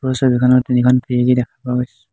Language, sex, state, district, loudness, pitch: Assamese, male, Assam, Hailakandi, -16 LUFS, 125 Hz